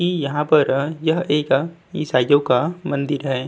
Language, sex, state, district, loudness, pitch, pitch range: Hindi, male, Uttar Pradesh, Budaun, -19 LUFS, 150 Hz, 140-160 Hz